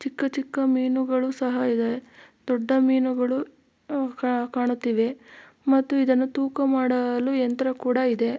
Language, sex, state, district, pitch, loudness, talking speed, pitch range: Kannada, female, Karnataka, Mysore, 255 Hz, -24 LUFS, 105 wpm, 250-270 Hz